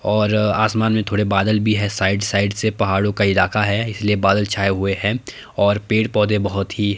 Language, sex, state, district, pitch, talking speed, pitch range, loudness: Hindi, male, Himachal Pradesh, Shimla, 105 Hz, 205 wpm, 100-110 Hz, -18 LUFS